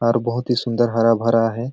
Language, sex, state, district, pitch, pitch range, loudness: Sadri, male, Chhattisgarh, Jashpur, 115 Hz, 115-120 Hz, -19 LUFS